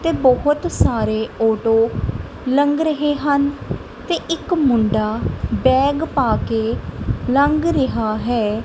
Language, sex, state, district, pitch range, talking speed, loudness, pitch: Punjabi, female, Punjab, Kapurthala, 225-295 Hz, 110 wpm, -18 LUFS, 270 Hz